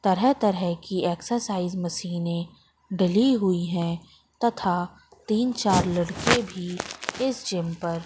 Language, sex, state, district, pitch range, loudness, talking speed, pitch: Hindi, female, Madhya Pradesh, Katni, 175-215 Hz, -25 LUFS, 120 wpm, 180 Hz